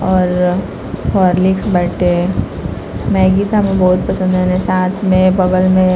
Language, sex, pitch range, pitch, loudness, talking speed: Bhojpuri, female, 180-190 Hz, 185 Hz, -14 LUFS, 140 wpm